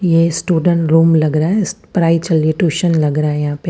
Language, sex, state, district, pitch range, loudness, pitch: Hindi, female, Punjab, Fazilka, 155-170 Hz, -14 LUFS, 165 Hz